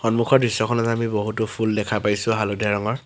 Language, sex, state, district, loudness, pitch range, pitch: Assamese, male, Assam, Sonitpur, -21 LUFS, 105-115 Hz, 110 Hz